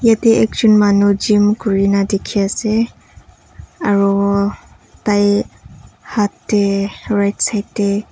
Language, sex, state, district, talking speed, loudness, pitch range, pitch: Nagamese, female, Nagaland, Kohima, 95 wpm, -15 LUFS, 200-215 Hz, 205 Hz